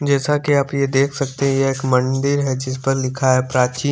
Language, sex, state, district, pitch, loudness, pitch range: Hindi, male, Chandigarh, Chandigarh, 135 Hz, -18 LUFS, 130-140 Hz